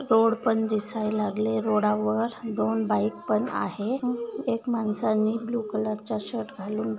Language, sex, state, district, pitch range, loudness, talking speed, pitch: Marathi, female, Maharashtra, Nagpur, 210-230 Hz, -27 LUFS, 135 wpm, 215 Hz